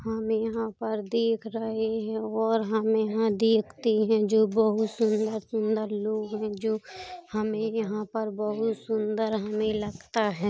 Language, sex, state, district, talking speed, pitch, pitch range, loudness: Hindi, female, Uttar Pradesh, Jalaun, 145 wpm, 220 Hz, 215-225 Hz, -27 LUFS